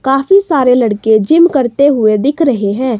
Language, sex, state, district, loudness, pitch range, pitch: Hindi, female, Himachal Pradesh, Shimla, -11 LUFS, 220-290 Hz, 265 Hz